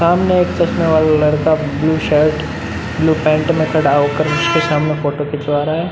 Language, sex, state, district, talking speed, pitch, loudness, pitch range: Hindi, male, Uttar Pradesh, Muzaffarnagar, 170 wpm, 155 Hz, -15 LUFS, 145-160 Hz